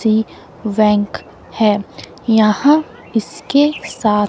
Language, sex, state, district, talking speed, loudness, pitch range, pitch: Hindi, female, Himachal Pradesh, Shimla, 85 wpm, -16 LUFS, 210-235 Hz, 215 Hz